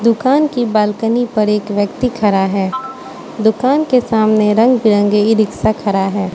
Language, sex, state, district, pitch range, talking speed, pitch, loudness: Hindi, female, Manipur, Imphal West, 210-245 Hz, 160 wpm, 220 Hz, -14 LUFS